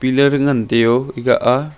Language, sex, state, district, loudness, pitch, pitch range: Wancho, male, Arunachal Pradesh, Longding, -15 LUFS, 130 Hz, 120-140 Hz